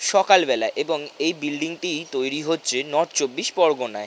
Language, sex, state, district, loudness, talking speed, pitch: Bengali, male, West Bengal, North 24 Parganas, -22 LUFS, 145 wpm, 165 Hz